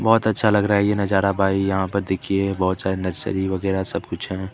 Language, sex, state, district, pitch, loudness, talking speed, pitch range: Hindi, male, Chandigarh, Chandigarh, 95 Hz, -21 LUFS, 240 wpm, 95-100 Hz